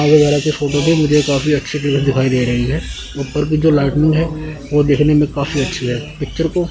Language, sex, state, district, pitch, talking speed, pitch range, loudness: Hindi, male, Chandigarh, Chandigarh, 145 Hz, 225 wpm, 140-155 Hz, -15 LUFS